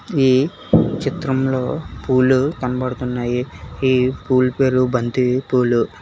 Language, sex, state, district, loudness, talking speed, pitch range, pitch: Telugu, male, Telangana, Hyderabad, -18 LUFS, 90 wpm, 125-130 Hz, 130 Hz